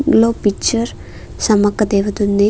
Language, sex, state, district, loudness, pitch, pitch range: Telugu, female, Andhra Pradesh, Guntur, -16 LUFS, 210 Hz, 205-230 Hz